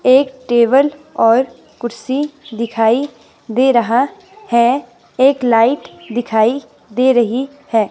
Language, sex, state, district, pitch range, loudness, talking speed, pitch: Hindi, female, Himachal Pradesh, Shimla, 230-270 Hz, -15 LUFS, 105 wpm, 245 Hz